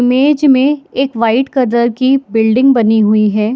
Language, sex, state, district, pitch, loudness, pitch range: Hindi, female, Chhattisgarh, Bilaspur, 250 Hz, -11 LUFS, 225-270 Hz